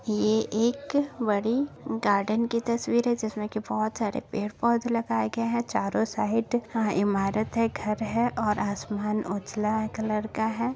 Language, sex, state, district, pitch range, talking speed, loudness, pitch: Hindi, female, Maharashtra, Nagpur, 210-235 Hz, 160 wpm, -27 LUFS, 220 Hz